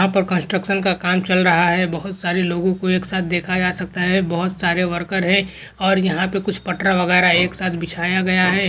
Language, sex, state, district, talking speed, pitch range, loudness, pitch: Hindi, male, Maharashtra, Dhule, 230 wpm, 180-190 Hz, -18 LUFS, 185 Hz